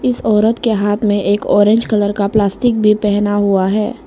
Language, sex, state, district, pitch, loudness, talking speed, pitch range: Hindi, female, Arunachal Pradesh, Lower Dibang Valley, 210 Hz, -14 LUFS, 205 wpm, 205-220 Hz